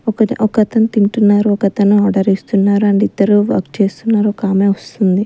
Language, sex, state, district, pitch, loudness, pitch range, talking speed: Telugu, female, Andhra Pradesh, Sri Satya Sai, 205 Hz, -13 LUFS, 200-215 Hz, 125 wpm